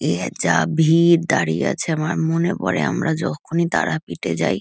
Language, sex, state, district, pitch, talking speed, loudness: Bengali, female, West Bengal, Kolkata, 160 Hz, 155 wpm, -19 LUFS